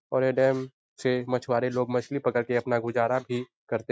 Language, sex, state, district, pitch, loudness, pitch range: Hindi, male, Bihar, Jahanabad, 125 Hz, -27 LUFS, 120-130 Hz